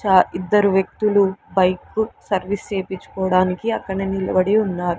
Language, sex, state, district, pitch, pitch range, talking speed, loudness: Telugu, female, Andhra Pradesh, Sri Satya Sai, 195 Hz, 185-205 Hz, 110 wpm, -20 LUFS